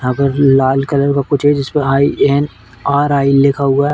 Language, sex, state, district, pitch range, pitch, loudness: Hindi, female, Uttar Pradesh, Etah, 135-145 Hz, 140 Hz, -13 LUFS